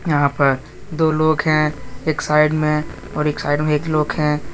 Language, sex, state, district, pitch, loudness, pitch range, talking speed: Hindi, male, Jharkhand, Deoghar, 150 Hz, -18 LUFS, 145-155 Hz, 200 wpm